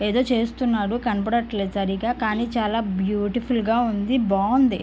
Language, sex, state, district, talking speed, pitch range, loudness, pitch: Telugu, female, Andhra Pradesh, Guntur, 125 wpm, 205-240 Hz, -23 LUFS, 225 Hz